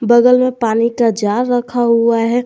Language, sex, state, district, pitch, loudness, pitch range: Hindi, male, Jharkhand, Garhwa, 235 Hz, -14 LUFS, 230-245 Hz